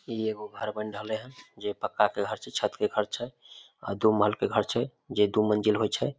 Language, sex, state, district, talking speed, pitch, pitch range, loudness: Maithili, male, Bihar, Samastipur, 250 wpm, 105 Hz, 105-110 Hz, -29 LUFS